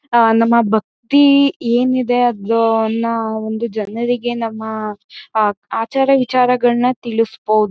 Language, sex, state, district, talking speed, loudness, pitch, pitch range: Kannada, female, Karnataka, Mysore, 95 wpm, -16 LUFS, 230 Hz, 220-245 Hz